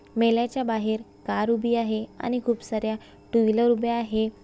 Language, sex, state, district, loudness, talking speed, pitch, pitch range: Marathi, female, Maharashtra, Chandrapur, -25 LUFS, 160 wpm, 230 Hz, 220-235 Hz